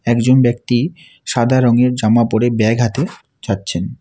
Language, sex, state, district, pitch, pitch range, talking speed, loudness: Bengali, male, West Bengal, Alipurduar, 120 Hz, 115-125 Hz, 135 wpm, -15 LUFS